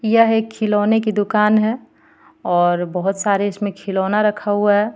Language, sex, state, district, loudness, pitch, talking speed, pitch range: Hindi, female, Jharkhand, Ranchi, -18 LUFS, 210 Hz, 170 wpm, 195-215 Hz